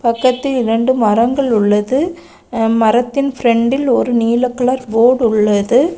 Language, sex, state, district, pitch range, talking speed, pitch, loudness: Tamil, female, Tamil Nadu, Kanyakumari, 225-255 Hz, 110 wpm, 245 Hz, -14 LUFS